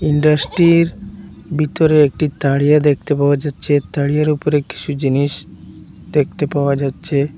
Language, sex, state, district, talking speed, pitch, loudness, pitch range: Bengali, male, Assam, Hailakandi, 115 wpm, 145 Hz, -16 LUFS, 140-150 Hz